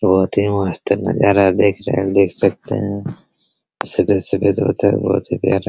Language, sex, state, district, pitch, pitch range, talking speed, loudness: Hindi, male, Bihar, Araria, 100 Hz, 95-100 Hz, 170 wpm, -17 LUFS